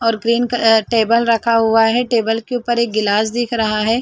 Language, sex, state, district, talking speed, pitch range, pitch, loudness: Hindi, female, Chhattisgarh, Rajnandgaon, 225 wpm, 225-235 Hz, 230 Hz, -16 LUFS